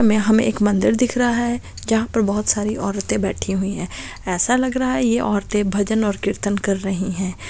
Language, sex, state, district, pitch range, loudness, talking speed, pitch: Maithili, female, Bihar, Darbhanga, 200-230 Hz, -20 LUFS, 215 wpm, 210 Hz